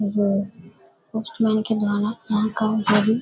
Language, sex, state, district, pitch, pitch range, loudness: Hindi, female, Bihar, Darbhanga, 215 Hz, 205-220 Hz, -22 LUFS